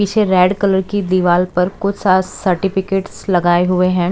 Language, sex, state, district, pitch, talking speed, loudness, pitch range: Hindi, female, Chhattisgarh, Raipur, 185 Hz, 175 wpm, -15 LUFS, 180-195 Hz